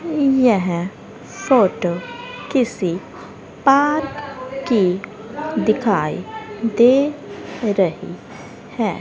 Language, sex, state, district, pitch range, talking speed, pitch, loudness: Hindi, female, Haryana, Rohtak, 195-280 Hz, 60 wpm, 245 Hz, -19 LUFS